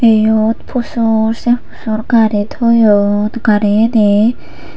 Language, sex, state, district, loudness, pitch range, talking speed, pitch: Chakma, female, Tripura, Unakoti, -13 LUFS, 210-235 Hz, 90 wpm, 220 Hz